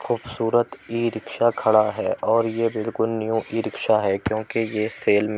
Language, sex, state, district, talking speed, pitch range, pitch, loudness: Hindi, male, Uttar Pradesh, Jyotiba Phule Nagar, 180 wpm, 110-115 Hz, 110 Hz, -23 LUFS